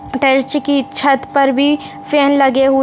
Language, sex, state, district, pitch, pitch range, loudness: Hindi, female, Bihar, Madhepura, 275 Hz, 270-280 Hz, -13 LUFS